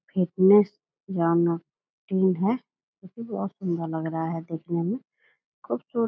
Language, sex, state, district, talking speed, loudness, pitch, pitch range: Hindi, female, Bihar, Purnia, 150 wpm, -26 LUFS, 190 Hz, 170-210 Hz